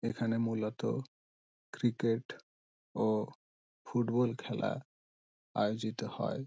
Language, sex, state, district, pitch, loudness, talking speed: Bengali, male, West Bengal, Dakshin Dinajpur, 110 Hz, -35 LUFS, 75 wpm